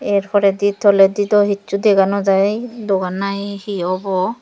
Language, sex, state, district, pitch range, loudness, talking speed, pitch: Chakma, female, Tripura, Dhalai, 195-205 Hz, -16 LUFS, 150 wpm, 200 Hz